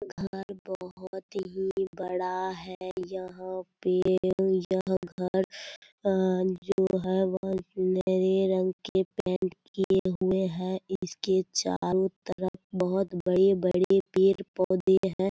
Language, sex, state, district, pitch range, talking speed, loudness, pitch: Hindi, female, Bihar, Purnia, 185-190 Hz, 100 wpm, -28 LUFS, 185 Hz